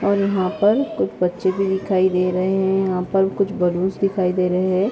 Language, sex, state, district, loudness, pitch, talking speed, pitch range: Hindi, female, Uttar Pradesh, Hamirpur, -19 LUFS, 190 Hz, 230 wpm, 185-195 Hz